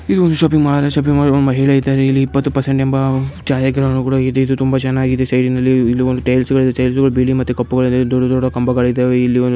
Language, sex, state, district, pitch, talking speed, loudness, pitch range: Kannada, male, Karnataka, Chamarajanagar, 130 Hz, 130 wpm, -14 LUFS, 125-135 Hz